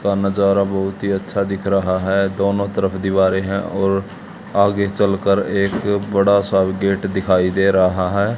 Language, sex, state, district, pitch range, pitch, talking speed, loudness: Hindi, male, Haryana, Charkhi Dadri, 95-100 Hz, 100 Hz, 170 wpm, -18 LUFS